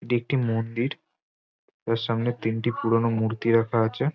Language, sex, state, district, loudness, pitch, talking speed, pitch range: Bengali, male, West Bengal, Jhargram, -25 LUFS, 115 Hz, 115 wpm, 115-120 Hz